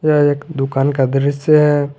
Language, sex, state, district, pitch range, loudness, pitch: Hindi, male, Jharkhand, Garhwa, 135-150 Hz, -15 LUFS, 145 Hz